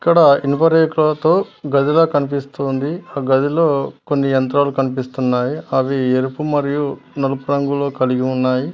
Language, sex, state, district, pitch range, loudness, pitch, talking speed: Telugu, male, Telangana, Mahabubabad, 135-150 Hz, -17 LUFS, 140 Hz, 115 wpm